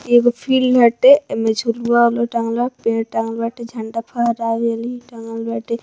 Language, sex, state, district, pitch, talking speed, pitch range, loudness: Bhojpuri, female, Bihar, Muzaffarpur, 235 Hz, 155 wpm, 230-240 Hz, -17 LUFS